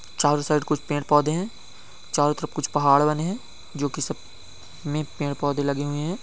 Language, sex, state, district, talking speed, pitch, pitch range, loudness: Hindi, male, Bihar, Begusarai, 200 wpm, 145 Hz, 140-150 Hz, -24 LUFS